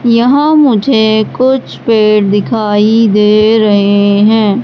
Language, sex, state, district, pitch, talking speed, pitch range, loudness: Hindi, female, Madhya Pradesh, Katni, 220 Hz, 105 wpm, 210-235 Hz, -9 LUFS